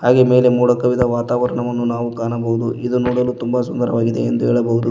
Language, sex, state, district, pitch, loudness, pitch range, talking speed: Kannada, male, Karnataka, Koppal, 120 Hz, -17 LUFS, 115-125 Hz, 160 wpm